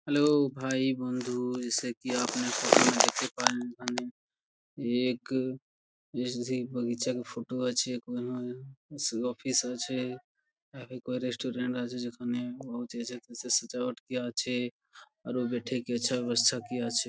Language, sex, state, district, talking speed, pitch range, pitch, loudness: Bengali, male, West Bengal, Purulia, 85 wpm, 120-125 Hz, 125 Hz, -31 LUFS